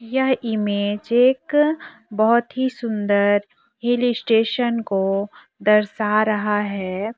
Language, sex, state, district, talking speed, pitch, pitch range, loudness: Hindi, female, Chhattisgarh, Korba, 100 wpm, 220 Hz, 205-245 Hz, -20 LUFS